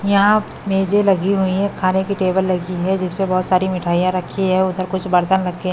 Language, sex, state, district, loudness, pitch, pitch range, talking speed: Hindi, female, Delhi, New Delhi, -17 LUFS, 185 Hz, 185-195 Hz, 220 wpm